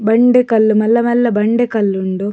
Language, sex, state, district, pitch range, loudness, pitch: Tulu, female, Karnataka, Dakshina Kannada, 210-235 Hz, -13 LUFS, 225 Hz